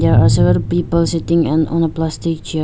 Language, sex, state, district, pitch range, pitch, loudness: English, female, Arunachal Pradesh, Lower Dibang Valley, 155-165 Hz, 165 Hz, -15 LUFS